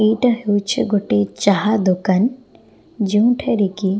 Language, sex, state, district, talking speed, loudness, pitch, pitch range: Odia, female, Odisha, Khordha, 105 wpm, -17 LUFS, 210 Hz, 195-235 Hz